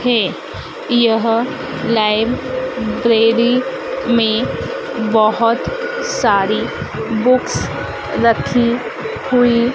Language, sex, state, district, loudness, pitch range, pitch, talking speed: Hindi, female, Madhya Pradesh, Dhar, -16 LUFS, 230-255 Hz, 240 Hz, 55 wpm